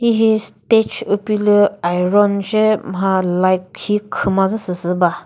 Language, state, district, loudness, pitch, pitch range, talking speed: Chakhesang, Nagaland, Dimapur, -16 LUFS, 200 Hz, 185-215 Hz, 125 wpm